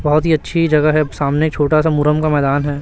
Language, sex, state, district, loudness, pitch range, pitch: Hindi, male, Chhattisgarh, Raipur, -15 LUFS, 145-155 Hz, 150 Hz